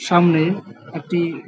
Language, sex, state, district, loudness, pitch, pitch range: Bengali, male, West Bengal, Paschim Medinipur, -19 LUFS, 170 Hz, 160-175 Hz